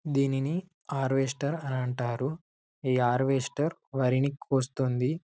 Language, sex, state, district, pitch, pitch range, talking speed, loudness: Telugu, male, Telangana, Karimnagar, 135 Hz, 130-145 Hz, 105 wpm, -29 LUFS